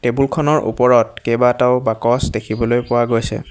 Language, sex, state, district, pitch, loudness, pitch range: Assamese, male, Assam, Hailakandi, 120 Hz, -16 LUFS, 115-125 Hz